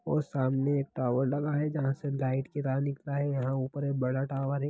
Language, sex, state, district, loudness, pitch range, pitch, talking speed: Hindi, male, Bihar, Jahanabad, -31 LUFS, 135-145 Hz, 140 Hz, 240 wpm